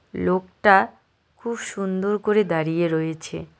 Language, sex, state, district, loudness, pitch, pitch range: Bengali, male, West Bengal, Cooch Behar, -22 LUFS, 190 Hz, 165-210 Hz